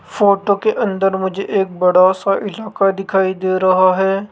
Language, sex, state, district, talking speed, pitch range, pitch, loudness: Hindi, male, Rajasthan, Jaipur, 165 wpm, 185-200 Hz, 195 Hz, -15 LUFS